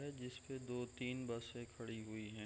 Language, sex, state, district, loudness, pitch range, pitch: Hindi, male, Chhattisgarh, Raigarh, -47 LUFS, 115-125 Hz, 120 Hz